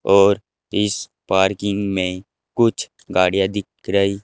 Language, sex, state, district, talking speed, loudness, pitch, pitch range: Hindi, male, Uttar Pradesh, Saharanpur, 115 wpm, -19 LUFS, 100 Hz, 95-100 Hz